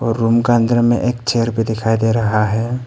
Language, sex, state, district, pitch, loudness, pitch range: Hindi, male, Arunachal Pradesh, Papum Pare, 115 Hz, -16 LUFS, 115-120 Hz